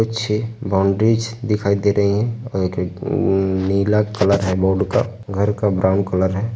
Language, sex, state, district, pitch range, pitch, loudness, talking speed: Hindi, male, Uttar Pradesh, Varanasi, 95-110 Hz, 100 Hz, -19 LUFS, 155 wpm